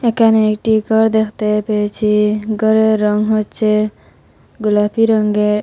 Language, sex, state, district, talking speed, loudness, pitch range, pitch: Bengali, female, Assam, Hailakandi, 105 wpm, -15 LUFS, 210-220 Hz, 215 Hz